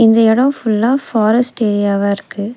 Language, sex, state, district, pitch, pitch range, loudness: Tamil, female, Tamil Nadu, Nilgiris, 225 Hz, 205-240 Hz, -14 LUFS